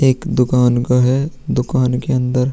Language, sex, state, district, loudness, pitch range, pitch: Hindi, male, Bihar, Vaishali, -16 LUFS, 125-135 Hz, 125 Hz